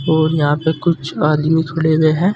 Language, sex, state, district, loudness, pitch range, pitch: Hindi, male, Uttar Pradesh, Saharanpur, -16 LUFS, 155-160 Hz, 160 Hz